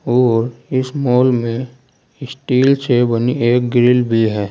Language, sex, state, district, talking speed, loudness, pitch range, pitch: Hindi, male, Uttar Pradesh, Saharanpur, 145 wpm, -15 LUFS, 120-130 Hz, 125 Hz